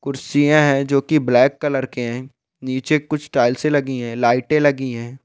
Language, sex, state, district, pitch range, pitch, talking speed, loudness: Hindi, male, Bihar, Bhagalpur, 125-145 Hz, 135 Hz, 185 wpm, -18 LUFS